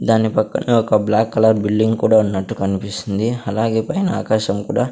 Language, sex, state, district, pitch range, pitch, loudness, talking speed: Telugu, male, Andhra Pradesh, Sri Satya Sai, 105-115 Hz, 110 Hz, -17 LUFS, 160 wpm